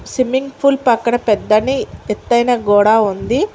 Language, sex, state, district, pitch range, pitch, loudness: Telugu, female, Telangana, Mahabubabad, 215-265 Hz, 240 Hz, -15 LUFS